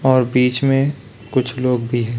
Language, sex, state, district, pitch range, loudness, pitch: Hindi, male, Chhattisgarh, Raipur, 120-130 Hz, -18 LUFS, 125 Hz